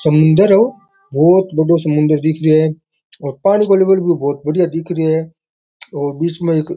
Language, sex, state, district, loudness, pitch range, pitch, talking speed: Rajasthani, male, Rajasthan, Nagaur, -14 LUFS, 155-180 Hz, 160 Hz, 210 wpm